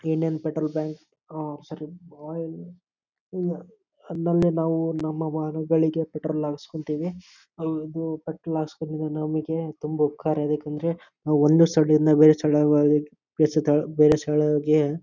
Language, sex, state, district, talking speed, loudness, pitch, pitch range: Kannada, male, Karnataka, Bellary, 115 wpm, -24 LUFS, 155 Hz, 150-160 Hz